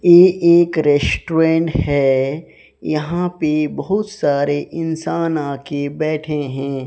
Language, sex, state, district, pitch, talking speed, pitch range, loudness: Hindi, male, Odisha, Sambalpur, 155 Hz, 115 wpm, 145-170 Hz, -17 LUFS